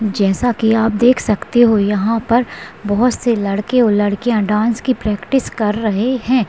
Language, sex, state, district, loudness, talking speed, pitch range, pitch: Hindi, female, Rajasthan, Nagaur, -15 LUFS, 175 wpm, 205-240 Hz, 225 Hz